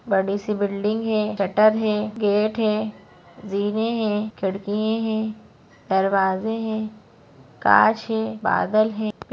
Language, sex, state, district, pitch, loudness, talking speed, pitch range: Hindi, female, Maharashtra, Nagpur, 215 Hz, -22 LUFS, 115 wpm, 205-220 Hz